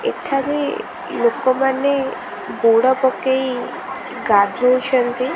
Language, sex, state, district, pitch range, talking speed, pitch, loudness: Odia, female, Odisha, Khordha, 245-275 Hz, 55 wpm, 260 Hz, -18 LUFS